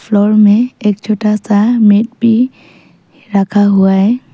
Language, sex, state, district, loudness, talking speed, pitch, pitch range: Hindi, female, Arunachal Pradesh, Papum Pare, -11 LUFS, 140 wpm, 210 Hz, 205-230 Hz